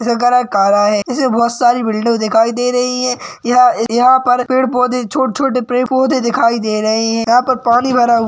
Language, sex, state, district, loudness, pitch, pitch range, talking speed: Hindi, male, Maharashtra, Solapur, -13 LUFS, 245 Hz, 230-250 Hz, 190 wpm